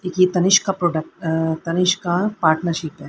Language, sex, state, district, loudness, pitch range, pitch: Hindi, female, Haryana, Rohtak, -19 LUFS, 160-185 Hz, 175 Hz